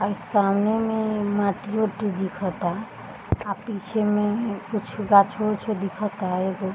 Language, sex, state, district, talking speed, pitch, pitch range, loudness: Bhojpuri, female, Bihar, Gopalganj, 140 wpm, 205 Hz, 195-215 Hz, -24 LUFS